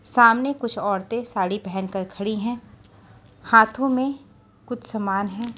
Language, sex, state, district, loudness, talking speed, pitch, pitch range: Hindi, female, Bihar, West Champaran, -22 LUFS, 130 wpm, 215 Hz, 190-235 Hz